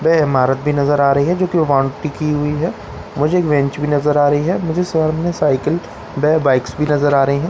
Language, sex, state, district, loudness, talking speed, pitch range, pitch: Hindi, male, Bihar, Katihar, -16 LUFS, 270 wpm, 140-160 Hz, 150 Hz